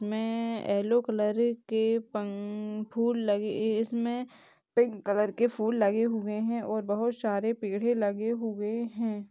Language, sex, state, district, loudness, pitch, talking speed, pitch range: Hindi, female, Chhattisgarh, Kabirdham, -29 LUFS, 220 Hz, 150 wpm, 210-230 Hz